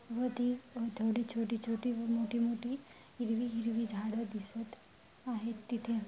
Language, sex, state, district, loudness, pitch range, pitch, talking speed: Marathi, female, Maharashtra, Dhule, -37 LUFS, 230-240 Hz, 230 Hz, 130 wpm